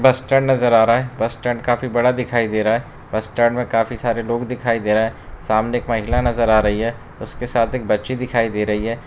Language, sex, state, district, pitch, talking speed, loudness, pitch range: Hindi, male, Bihar, Darbhanga, 115 Hz, 260 wpm, -19 LUFS, 110-125 Hz